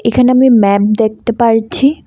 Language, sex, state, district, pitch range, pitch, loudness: Bengali, female, Assam, Kamrup Metropolitan, 220-255 Hz, 230 Hz, -11 LUFS